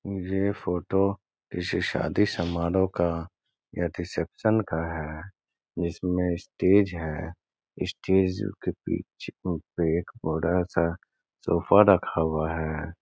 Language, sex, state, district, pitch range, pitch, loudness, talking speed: Hindi, male, Bihar, Gaya, 85-95 Hz, 90 Hz, -27 LUFS, 110 wpm